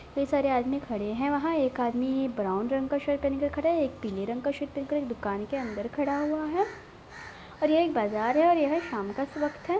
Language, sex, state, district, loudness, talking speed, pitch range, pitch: Hindi, female, Bihar, Gopalganj, -28 LUFS, 245 wpm, 240-295 Hz, 280 Hz